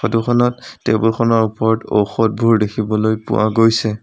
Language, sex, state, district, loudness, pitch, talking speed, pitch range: Assamese, male, Assam, Sonitpur, -16 LUFS, 115 Hz, 135 wpm, 110-115 Hz